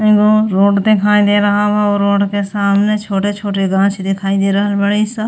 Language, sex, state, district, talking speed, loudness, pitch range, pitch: Bhojpuri, female, Uttar Pradesh, Gorakhpur, 205 wpm, -13 LUFS, 200-210 Hz, 205 Hz